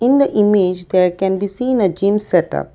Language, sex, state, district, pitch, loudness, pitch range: English, female, Assam, Kamrup Metropolitan, 195 Hz, -16 LUFS, 180-210 Hz